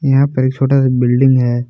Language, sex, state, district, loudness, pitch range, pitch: Hindi, male, Jharkhand, Palamu, -13 LUFS, 125-135 Hz, 130 Hz